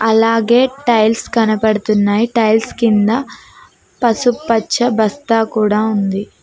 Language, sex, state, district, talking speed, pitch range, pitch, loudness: Telugu, female, Telangana, Mahabubabad, 85 wpm, 215-235 Hz, 225 Hz, -14 LUFS